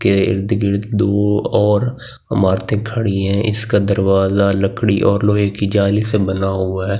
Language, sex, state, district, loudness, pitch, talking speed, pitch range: Hindi, male, Delhi, New Delhi, -16 LUFS, 100 Hz, 180 wpm, 95-105 Hz